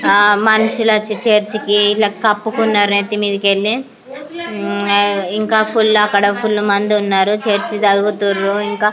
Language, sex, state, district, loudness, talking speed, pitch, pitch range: Telugu, female, Andhra Pradesh, Anantapur, -14 LUFS, 80 wpm, 210 Hz, 205-220 Hz